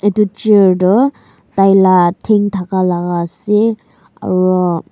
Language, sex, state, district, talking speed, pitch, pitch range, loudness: Nagamese, female, Nagaland, Kohima, 120 wpm, 190 Hz, 180-210 Hz, -13 LUFS